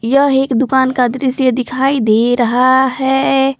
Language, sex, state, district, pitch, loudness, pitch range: Hindi, female, Jharkhand, Palamu, 260 Hz, -13 LUFS, 250-270 Hz